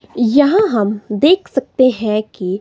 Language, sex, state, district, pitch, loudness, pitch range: Hindi, female, Himachal Pradesh, Shimla, 235 Hz, -15 LUFS, 210-285 Hz